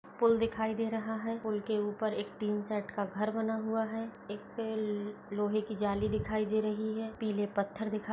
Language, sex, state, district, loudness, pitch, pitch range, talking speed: Hindi, female, Uttar Pradesh, Etah, -34 LUFS, 215 Hz, 210-220 Hz, 205 wpm